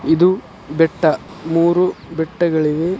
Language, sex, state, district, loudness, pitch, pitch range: Kannada, male, Karnataka, Dharwad, -17 LUFS, 165 Hz, 160-180 Hz